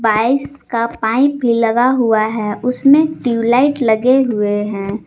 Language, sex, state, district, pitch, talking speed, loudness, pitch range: Hindi, female, Jharkhand, Garhwa, 235 Hz, 130 wpm, -15 LUFS, 220-265 Hz